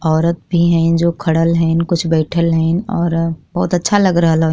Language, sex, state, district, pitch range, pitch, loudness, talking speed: Bhojpuri, female, Uttar Pradesh, Deoria, 165-170 Hz, 170 Hz, -15 LUFS, 200 wpm